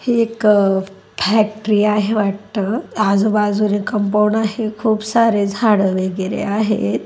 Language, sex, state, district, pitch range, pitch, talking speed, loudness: Marathi, female, Maharashtra, Dhule, 200-215 Hz, 210 Hz, 120 wpm, -17 LUFS